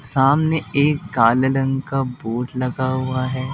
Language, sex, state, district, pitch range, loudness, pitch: Hindi, male, Delhi, New Delhi, 130-135 Hz, -19 LUFS, 130 Hz